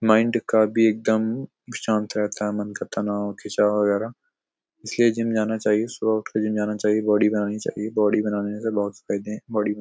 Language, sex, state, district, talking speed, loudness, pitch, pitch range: Hindi, male, Uttar Pradesh, Budaun, 200 wpm, -23 LUFS, 105 Hz, 105-110 Hz